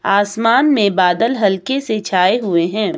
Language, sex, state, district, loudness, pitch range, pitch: Hindi, male, Himachal Pradesh, Shimla, -15 LUFS, 190-230 Hz, 210 Hz